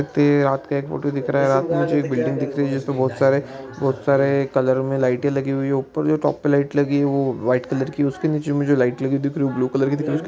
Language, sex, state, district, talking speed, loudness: Maithili, male, Bihar, Araria, 300 wpm, -20 LUFS